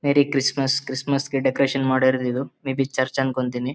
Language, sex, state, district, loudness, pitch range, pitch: Kannada, male, Karnataka, Bellary, -22 LUFS, 130-140 Hz, 135 Hz